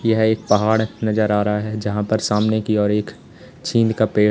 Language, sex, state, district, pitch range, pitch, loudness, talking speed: Hindi, male, Uttar Pradesh, Lalitpur, 105-110 Hz, 110 Hz, -19 LUFS, 220 wpm